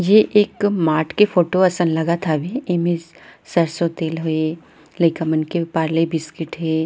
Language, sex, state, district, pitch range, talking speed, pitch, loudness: Chhattisgarhi, female, Chhattisgarh, Rajnandgaon, 160-175 Hz, 165 wpm, 165 Hz, -19 LUFS